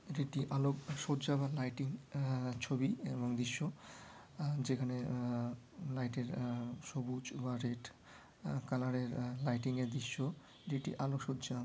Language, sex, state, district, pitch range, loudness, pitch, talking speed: Bengali, male, West Bengal, Malda, 125-140 Hz, -40 LUFS, 130 Hz, 140 wpm